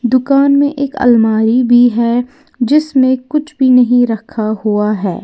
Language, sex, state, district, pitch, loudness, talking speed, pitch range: Hindi, female, Uttar Pradesh, Lalitpur, 245 Hz, -12 LUFS, 150 wpm, 230-275 Hz